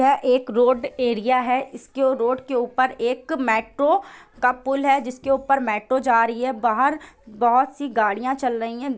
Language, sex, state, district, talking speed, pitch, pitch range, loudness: Hindi, female, Bihar, East Champaran, 165 wpm, 255 Hz, 240-270 Hz, -21 LUFS